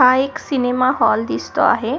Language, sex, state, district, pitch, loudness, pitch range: Marathi, female, Maharashtra, Sindhudurg, 255 Hz, -17 LUFS, 250-265 Hz